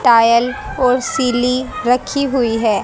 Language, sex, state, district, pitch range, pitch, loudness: Hindi, female, Haryana, Jhajjar, 235-260 Hz, 250 Hz, -15 LUFS